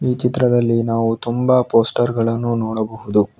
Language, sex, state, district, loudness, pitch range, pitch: Kannada, male, Karnataka, Bangalore, -18 LUFS, 115-120 Hz, 115 Hz